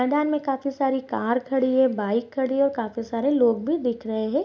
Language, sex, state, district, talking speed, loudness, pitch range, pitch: Hindi, female, Chhattisgarh, Sarguja, 230 wpm, -24 LUFS, 230-275 Hz, 260 Hz